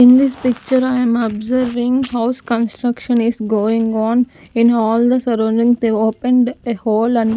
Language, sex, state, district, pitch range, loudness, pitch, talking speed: English, female, Punjab, Kapurthala, 225-250 Hz, -16 LUFS, 235 Hz, 170 wpm